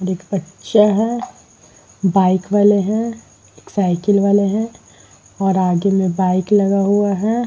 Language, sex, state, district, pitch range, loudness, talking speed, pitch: Hindi, female, Uttar Pradesh, Varanasi, 190-210 Hz, -16 LUFS, 135 wpm, 200 Hz